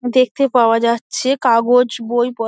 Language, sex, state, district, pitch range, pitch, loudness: Bengali, female, West Bengal, Dakshin Dinajpur, 230-255 Hz, 240 Hz, -15 LUFS